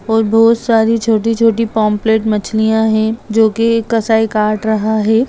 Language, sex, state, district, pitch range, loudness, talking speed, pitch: Hindi, female, Bihar, Jamui, 220-230 Hz, -13 LUFS, 160 wpm, 220 Hz